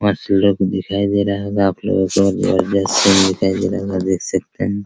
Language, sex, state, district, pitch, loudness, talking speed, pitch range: Hindi, male, Bihar, Araria, 100 Hz, -17 LUFS, 245 wpm, 95-100 Hz